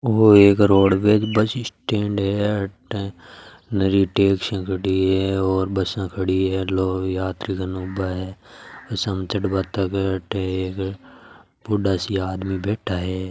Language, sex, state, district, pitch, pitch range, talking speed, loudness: Marwari, male, Rajasthan, Nagaur, 95 Hz, 95-100 Hz, 100 wpm, -21 LUFS